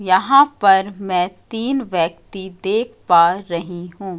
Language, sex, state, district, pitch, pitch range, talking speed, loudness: Hindi, female, Madhya Pradesh, Katni, 190 Hz, 180-210 Hz, 130 wpm, -17 LUFS